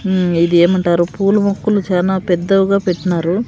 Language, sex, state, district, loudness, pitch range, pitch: Telugu, female, Andhra Pradesh, Sri Satya Sai, -14 LUFS, 175-195 Hz, 185 Hz